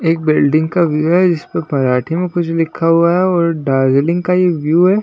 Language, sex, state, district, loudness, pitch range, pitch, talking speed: Hindi, male, Bihar, Katihar, -14 LUFS, 155-175 Hz, 165 Hz, 215 wpm